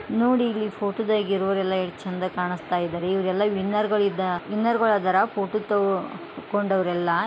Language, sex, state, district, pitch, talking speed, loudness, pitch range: Kannada, female, Karnataka, Gulbarga, 195 Hz, 165 wpm, -24 LUFS, 185-210 Hz